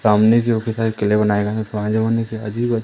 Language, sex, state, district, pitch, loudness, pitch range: Hindi, male, Madhya Pradesh, Umaria, 110 Hz, -18 LUFS, 105-115 Hz